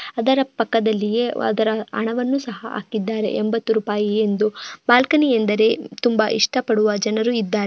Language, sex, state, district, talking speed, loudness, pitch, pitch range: Kannada, female, Karnataka, Mysore, 115 wpm, -20 LUFS, 220 Hz, 215-240 Hz